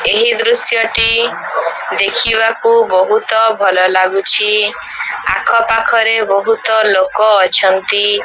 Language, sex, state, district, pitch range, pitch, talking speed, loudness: Odia, female, Odisha, Sambalpur, 195-230 Hz, 220 Hz, 95 wpm, -12 LUFS